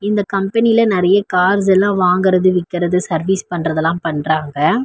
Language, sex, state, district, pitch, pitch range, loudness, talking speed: Tamil, female, Tamil Nadu, Chennai, 185 Hz, 175-200 Hz, -15 LUFS, 135 wpm